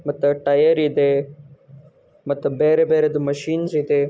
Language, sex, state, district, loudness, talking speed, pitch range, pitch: Kannada, male, Karnataka, Gulbarga, -19 LUFS, 130 wpm, 140-155 Hz, 145 Hz